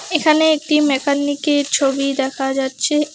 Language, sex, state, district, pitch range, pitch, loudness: Bengali, female, West Bengal, Alipurduar, 275-300 Hz, 285 Hz, -17 LUFS